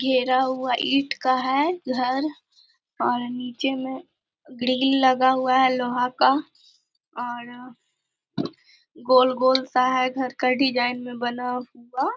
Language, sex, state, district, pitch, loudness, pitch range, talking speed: Hindi, female, Bihar, Begusarai, 255 Hz, -23 LUFS, 250-265 Hz, 125 wpm